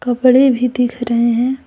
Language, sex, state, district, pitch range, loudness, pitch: Hindi, female, Jharkhand, Deoghar, 240-255 Hz, -14 LUFS, 250 Hz